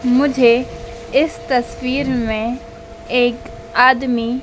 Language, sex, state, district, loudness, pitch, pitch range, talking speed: Hindi, female, Madhya Pradesh, Dhar, -17 LUFS, 245 Hz, 240-260 Hz, 80 wpm